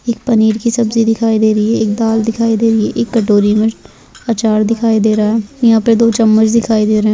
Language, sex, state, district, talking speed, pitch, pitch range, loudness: Hindi, female, Rajasthan, Churu, 250 wpm, 225 Hz, 220-230 Hz, -12 LUFS